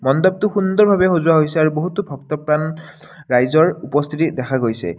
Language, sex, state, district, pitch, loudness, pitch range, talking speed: Assamese, male, Assam, Kamrup Metropolitan, 155 Hz, -17 LUFS, 140-180 Hz, 130 wpm